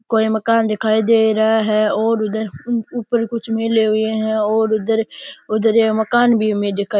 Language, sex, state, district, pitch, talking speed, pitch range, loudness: Rajasthani, male, Rajasthan, Churu, 220 Hz, 190 wpm, 215-225 Hz, -17 LUFS